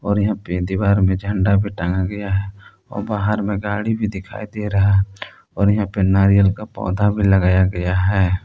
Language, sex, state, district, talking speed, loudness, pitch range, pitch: Hindi, male, Jharkhand, Palamu, 200 wpm, -18 LUFS, 95-105 Hz, 100 Hz